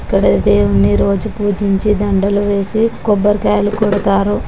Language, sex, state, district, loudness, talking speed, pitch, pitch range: Telugu, male, Andhra Pradesh, Chittoor, -14 LUFS, 105 wpm, 205 Hz, 195-210 Hz